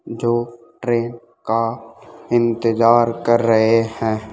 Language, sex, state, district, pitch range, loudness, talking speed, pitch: Hindi, male, Rajasthan, Jaipur, 115-120 Hz, -18 LUFS, 95 wpm, 115 Hz